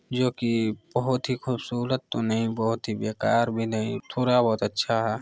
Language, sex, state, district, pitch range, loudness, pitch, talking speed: Hindi, male, Bihar, Araria, 110-125 Hz, -26 LUFS, 115 Hz, 170 wpm